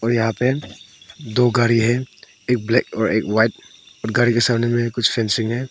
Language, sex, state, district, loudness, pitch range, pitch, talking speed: Hindi, male, Arunachal Pradesh, Papum Pare, -19 LUFS, 115-120 Hz, 120 Hz, 190 wpm